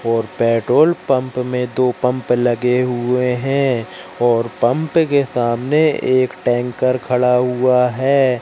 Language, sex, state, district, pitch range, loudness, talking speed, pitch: Hindi, male, Madhya Pradesh, Katni, 120-130 Hz, -16 LUFS, 130 wpm, 125 Hz